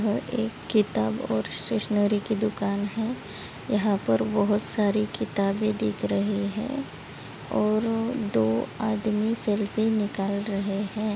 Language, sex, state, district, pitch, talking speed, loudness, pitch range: Hindi, female, Maharashtra, Chandrapur, 210 Hz, 125 wpm, -26 LUFS, 200-215 Hz